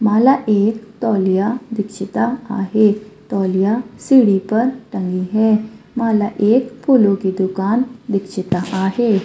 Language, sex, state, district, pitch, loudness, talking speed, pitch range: Marathi, female, Maharashtra, Sindhudurg, 215 Hz, -17 LUFS, 110 wpm, 195-235 Hz